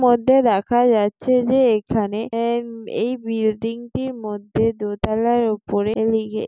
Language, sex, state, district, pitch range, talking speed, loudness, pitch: Bengali, female, West Bengal, Jalpaiguri, 215-240 Hz, 130 wpm, -20 LUFS, 225 Hz